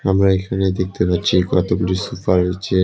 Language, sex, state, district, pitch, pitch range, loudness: Bengali, male, West Bengal, Cooch Behar, 95 Hz, 90-95 Hz, -18 LUFS